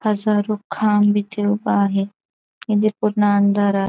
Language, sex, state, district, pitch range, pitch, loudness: Marathi, female, Maharashtra, Aurangabad, 200-210 Hz, 205 Hz, -19 LUFS